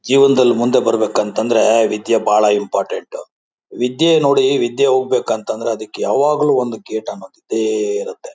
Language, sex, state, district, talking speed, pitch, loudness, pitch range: Kannada, male, Karnataka, Bijapur, 145 wpm, 130 Hz, -16 LUFS, 115-150 Hz